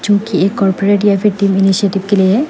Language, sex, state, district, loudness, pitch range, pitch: Hindi, female, Meghalaya, West Garo Hills, -13 LUFS, 195-205 Hz, 200 Hz